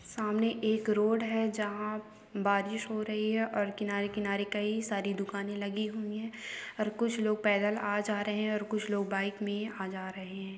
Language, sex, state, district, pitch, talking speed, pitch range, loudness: Hindi, female, West Bengal, Purulia, 210 Hz, 200 wpm, 200-215 Hz, -33 LUFS